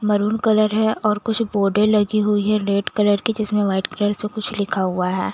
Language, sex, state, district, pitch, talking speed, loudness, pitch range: Hindi, female, Chandigarh, Chandigarh, 210 Hz, 225 wpm, -19 LUFS, 200-215 Hz